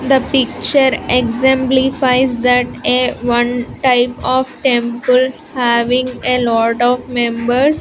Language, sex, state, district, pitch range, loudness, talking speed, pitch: English, female, Andhra Pradesh, Sri Satya Sai, 240-260 Hz, -14 LUFS, 105 wpm, 250 Hz